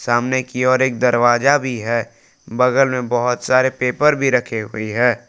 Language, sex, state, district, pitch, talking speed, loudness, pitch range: Hindi, male, Jharkhand, Palamu, 125 Hz, 180 wpm, -17 LUFS, 120-130 Hz